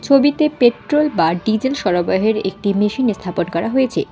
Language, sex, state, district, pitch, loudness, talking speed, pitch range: Bengali, female, West Bengal, Alipurduar, 220 Hz, -17 LUFS, 145 wpm, 190-275 Hz